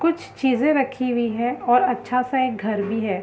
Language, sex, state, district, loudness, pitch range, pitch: Hindi, female, Uttar Pradesh, Hamirpur, -21 LUFS, 235-260 Hz, 250 Hz